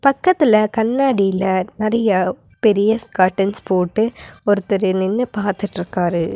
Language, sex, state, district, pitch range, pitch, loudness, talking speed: Tamil, female, Tamil Nadu, Nilgiris, 190-225 Hz, 205 Hz, -18 LUFS, 85 wpm